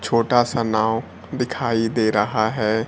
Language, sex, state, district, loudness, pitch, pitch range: Hindi, male, Bihar, Kaimur, -20 LUFS, 115 Hz, 110-120 Hz